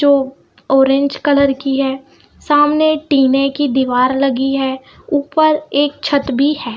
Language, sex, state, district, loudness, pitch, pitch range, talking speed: Hindi, female, Madhya Pradesh, Bhopal, -14 LUFS, 275 Hz, 265-290 Hz, 140 wpm